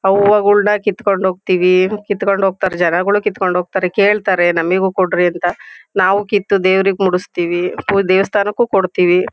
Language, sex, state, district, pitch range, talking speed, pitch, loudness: Kannada, female, Karnataka, Shimoga, 180-205 Hz, 120 wpm, 190 Hz, -14 LUFS